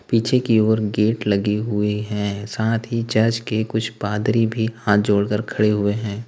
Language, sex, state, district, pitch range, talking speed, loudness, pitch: Hindi, male, Uttar Pradesh, Lalitpur, 105-115 Hz, 180 wpm, -20 LUFS, 110 Hz